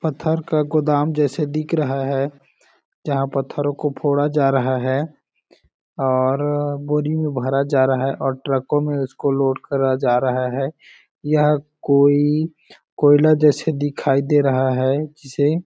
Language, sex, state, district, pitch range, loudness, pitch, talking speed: Hindi, male, Chhattisgarh, Balrampur, 135-150 Hz, -19 LUFS, 145 Hz, 155 wpm